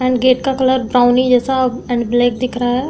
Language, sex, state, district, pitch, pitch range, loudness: Hindi, female, Uttar Pradesh, Deoria, 250 Hz, 245-260 Hz, -15 LUFS